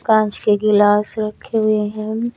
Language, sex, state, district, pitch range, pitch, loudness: Hindi, male, Chandigarh, Chandigarh, 210-220 Hz, 215 Hz, -17 LUFS